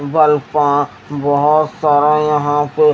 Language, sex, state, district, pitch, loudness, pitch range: Hindi, male, Haryana, Jhajjar, 150 Hz, -14 LUFS, 145-150 Hz